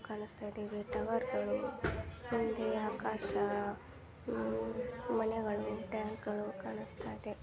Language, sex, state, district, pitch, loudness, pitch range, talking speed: Kannada, female, Karnataka, Mysore, 210 Hz, -38 LUFS, 195-225 Hz, 65 wpm